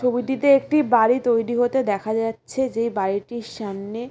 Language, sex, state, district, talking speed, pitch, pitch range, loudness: Bengali, female, West Bengal, Jalpaiguri, 145 wpm, 235 Hz, 220-255 Hz, -21 LUFS